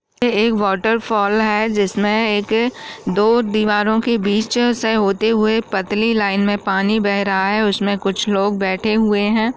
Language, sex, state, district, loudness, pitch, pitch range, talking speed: Hindi, female, Bihar, Jamui, -17 LUFS, 210 Hz, 200-220 Hz, 165 wpm